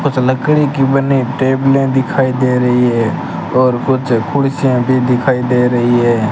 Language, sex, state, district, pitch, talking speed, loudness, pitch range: Hindi, male, Rajasthan, Bikaner, 130 Hz, 160 wpm, -13 LUFS, 125-135 Hz